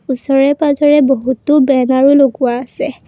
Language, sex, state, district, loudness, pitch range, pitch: Assamese, female, Assam, Kamrup Metropolitan, -12 LUFS, 260-285 Hz, 270 Hz